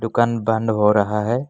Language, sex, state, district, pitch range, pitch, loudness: Hindi, male, Assam, Kamrup Metropolitan, 105-115 Hz, 110 Hz, -19 LUFS